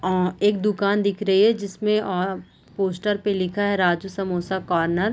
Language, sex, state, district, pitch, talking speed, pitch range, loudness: Hindi, female, Uttar Pradesh, Deoria, 195 Hz, 185 wpm, 185-205 Hz, -22 LUFS